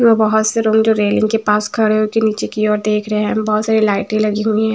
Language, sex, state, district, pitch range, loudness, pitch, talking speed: Hindi, female, Bihar, West Champaran, 210-220 Hz, -15 LUFS, 215 Hz, 290 wpm